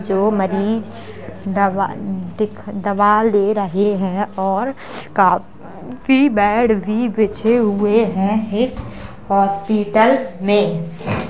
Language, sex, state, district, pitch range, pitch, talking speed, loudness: Hindi, male, Uttar Pradesh, Jalaun, 195-220 Hz, 205 Hz, 95 wpm, -17 LUFS